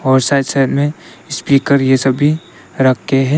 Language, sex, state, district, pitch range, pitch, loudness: Hindi, male, Arunachal Pradesh, Papum Pare, 130-145 Hz, 135 Hz, -14 LUFS